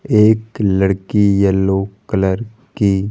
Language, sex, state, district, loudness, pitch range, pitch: Hindi, male, Rajasthan, Jaipur, -16 LUFS, 95-110 Hz, 100 Hz